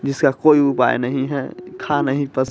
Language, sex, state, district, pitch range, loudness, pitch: Hindi, male, Bihar, West Champaran, 130-140 Hz, -18 LUFS, 140 Hz